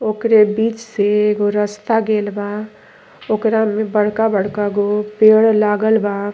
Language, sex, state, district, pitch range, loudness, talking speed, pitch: Bhojpuri, female, Uttar Pradesh, Deoria, 205-220 Hz, -16 LUFS, 135 wpm, 210 Hz